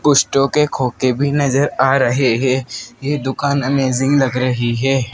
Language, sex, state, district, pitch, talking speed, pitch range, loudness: Hindi, male, Madhya Pradesh, Dhar, 135 Hz, 165 wpm, 125-140 Hz, -16 LUFS